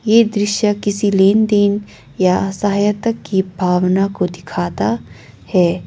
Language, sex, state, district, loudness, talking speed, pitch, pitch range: Hindi, female, Sikkim, Gangtok, -16 LUFS, 110 wpm, 200 Hz, 185-205 Hz